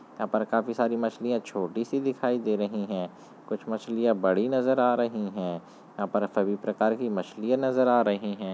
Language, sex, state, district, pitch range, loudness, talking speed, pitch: Hindi, male, Chhattisgarh, Balrampur, 105-120 Hz, -27 LUFS, 195 wpm, 110 Hz